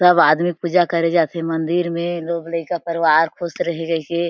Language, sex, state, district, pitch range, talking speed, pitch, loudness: Chhattisgarhi, female, Chhattisgarh, Jashpur, 165-175 Hz, 195 wpm, 170 Hz, -19 LUFS